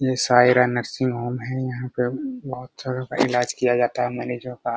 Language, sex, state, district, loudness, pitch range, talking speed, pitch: Hindi, male, Bihar, Araria, -22 LUFS, 125-130 Hz, 215 wpm, 125 Hz